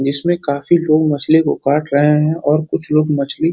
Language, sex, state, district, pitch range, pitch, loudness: Hindi, male, Uttar Pradesh, Deoria, 145-160 Hz, 150 Hz, -15 LUFS